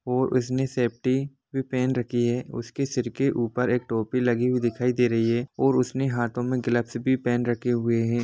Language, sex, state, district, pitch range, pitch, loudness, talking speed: Hindi, male, Bihar, Sitamarhi, 120-130 Hz, 125 Hz, -25 LUFS, 210 wpm